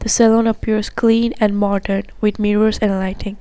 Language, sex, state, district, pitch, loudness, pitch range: English, female, Assam, Sonitpur, 215 Hz, -17 LUFS, 205-225 Hz